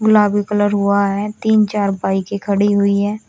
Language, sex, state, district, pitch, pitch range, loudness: Hindi, female, Uttar Pradesh, Shamli, 205 Hz, 200-210 Hz, -16 LUFS